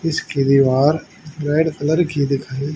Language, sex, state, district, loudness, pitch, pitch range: Hindi, male, Haryana, Charkhi Dadri, -18 LUFS, 145 Hz, 140-160 Hz